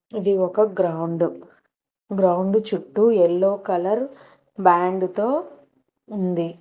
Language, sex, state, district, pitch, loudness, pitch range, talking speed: Telugu, female, Telangana, Hyderabad, 195 Hz, -21 LUFS, 180-215 Hz, 90 wpm